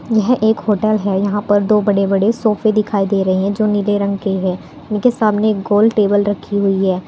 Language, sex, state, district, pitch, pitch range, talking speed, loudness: Hindi, female, Uttar Pradesh, Saharanpur, 205 Hz, 200-215 Hz, 220 wpm, -15 LUFS